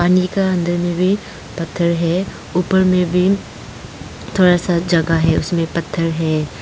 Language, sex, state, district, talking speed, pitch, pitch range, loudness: Hindi, female, Arunachal Pradesh, Lower Dibang Valley, 155 wpm, 175 Hz, 165-185 Hz, -17 LUFS